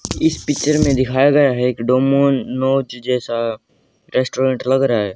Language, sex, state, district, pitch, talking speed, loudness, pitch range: Hindi, male, Haryana, Rohtak, 130 Hz, 150 wpm, -17 LUFS, 125-135 Hz